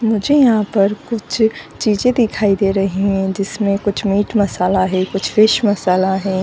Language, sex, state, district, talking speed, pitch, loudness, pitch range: Hindi, female, Jharkhand, Jamtara, 160 wpm, 200 Hz, -16 LUFS, 195-215 Hz